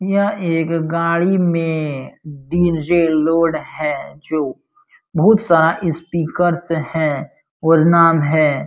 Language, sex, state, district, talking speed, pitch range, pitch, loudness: Hindi, male, Uttar Pradesh, Jalaun, 110 wpm, 155-175 Hz, 165 Hz, -17 LUFS